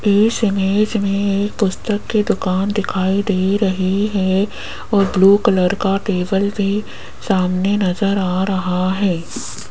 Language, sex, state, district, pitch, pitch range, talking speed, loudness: Hindi, female, Rajasthan, Jaipur, 195 Hz, 190-205 Hz, 135 wpm, -17 LUFS